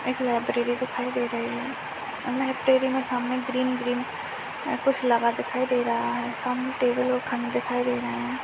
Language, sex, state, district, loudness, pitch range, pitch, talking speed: Hindi, female, Bihar, Begusarai, -26 LUFS, 245-255 Hz, 250 Hz, 185 wpm